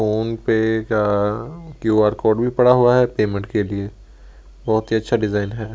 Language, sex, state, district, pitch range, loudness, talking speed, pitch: Hindi, male, Delhi, New Delhi, 105-115 Hz, -19 LUFS, 175 wpm, 110 Hz